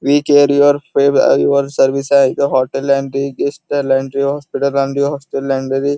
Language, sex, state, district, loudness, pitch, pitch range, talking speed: Marathi, male, Maharashtra, Chandrapur, -14 LUFS, 140 Hz, 135-140 Hz, 110 wpm